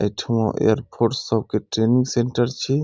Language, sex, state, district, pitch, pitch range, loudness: Maithili, male, Bihar, Saharsa, 115 Hz, 110-125 Hz, -21 LUFS